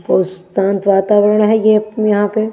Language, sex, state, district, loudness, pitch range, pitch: Hindi, female, Maharashtra, Washim, -13 LUFS, 195-215 Hz, 210 Hz